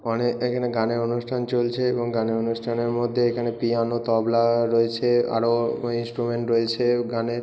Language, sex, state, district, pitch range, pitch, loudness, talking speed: Bengali, male, West Bengal, Purulia, 115-120 Hz, 120 Hz, -23 LUFS, 135 wpm